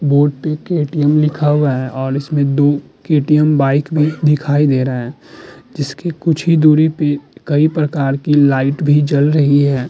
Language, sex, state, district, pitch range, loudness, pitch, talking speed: Hindi, male, Uttar Pradesh, Muzaffarnagar, 140-150 Hz, -14 LUFS, 145 Hz, 165 wpm